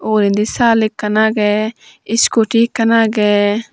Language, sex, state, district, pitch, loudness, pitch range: Chakma, female, Tripura, Dhalai, 220 Hz, -14 LUFS, 210-230 Hz